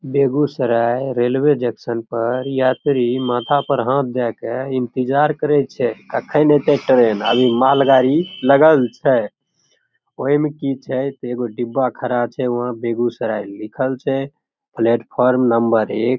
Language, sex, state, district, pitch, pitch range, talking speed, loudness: Maithili, male, Bihar, Begusarai, 130 Hz, 120-140 Hz, 135 wpm, -17 LUFS